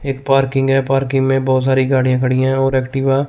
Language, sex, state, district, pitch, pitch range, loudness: Hindi, male, Chandigarh, Chandigarh, 135 Hz, 130-135 Hz, -15 LUFS